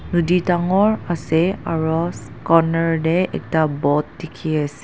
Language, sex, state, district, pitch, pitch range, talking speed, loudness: Nagamese, female, Nagaland, Dimapur, 165 Hz, 160-175 Hz, 125 wpm, -19 LUFS